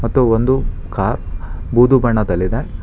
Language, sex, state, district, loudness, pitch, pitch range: Kannada, male, Karnataka, Bangalore, -16 LUFS, 115 Hz, 90-125 Hz